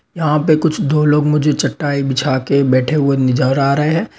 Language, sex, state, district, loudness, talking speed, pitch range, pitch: Hindi, male, Uttar Pradesh, Varanasi, -15 LUFS, 215 wpm, 135-150 Hz, 145 Hz